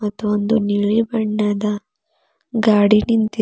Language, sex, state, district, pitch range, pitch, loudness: Kannada, female, Karnataka, Bidar, 210-220 Hz, 210 Hz, -18 LUFS